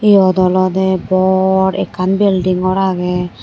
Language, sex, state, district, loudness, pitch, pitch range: Chakma, female, Tripura, West Tripura, -14 LUFS, 185 Hz, 185-190 Hz